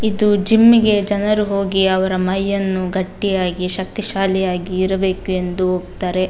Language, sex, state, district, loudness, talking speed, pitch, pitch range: Kannada, female, Karnataka, Dakshina Kannada, -17 LUFS, 105 wpm, 190 Hz, 185-205 Hz